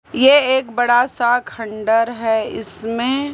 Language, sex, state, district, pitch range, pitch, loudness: Hindi, female, Maharashtra, Mumbai Suburban, 225-260 Hz, 240 Hz, -16 LUFS